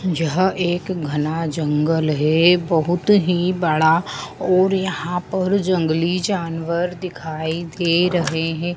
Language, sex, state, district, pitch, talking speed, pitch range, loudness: Hindi, female, Madhya Pradesh, Dhar, 175 Hz, 115 wpm, 160-180 Hz, -19 LUFS